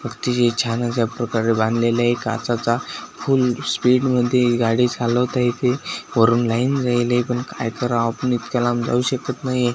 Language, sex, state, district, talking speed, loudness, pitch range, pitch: Marathi, male, Maharashtra, Washim, 155 wpm, -20 LUFS, 115-125 Hz, 120 Hz